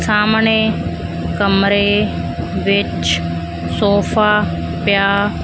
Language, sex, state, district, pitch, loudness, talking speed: Punjabi, female, Punjab, Fazilka, 200 Hz, -16 LUFS, 55 wpm